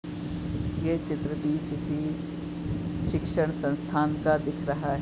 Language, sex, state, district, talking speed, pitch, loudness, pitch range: Hindi, male, Uttar Pradesh, Jyotiba Phule Nagar, 120 wpm, 155 Hz, -29 LUFS, 150-155 Hz